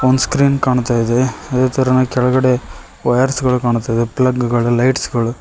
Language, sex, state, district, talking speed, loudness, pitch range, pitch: Kannada, male, Karnataka, Koppal, 165 wpm, -15 LUFS, 120-130 Hz, 125 Hz